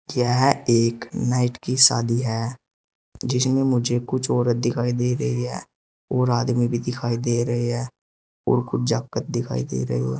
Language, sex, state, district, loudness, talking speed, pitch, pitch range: Hindi, male, Uttar Pradesh, Shamli, -22 LUFS, 165 wpm, 120 Hz, 115-125 Hz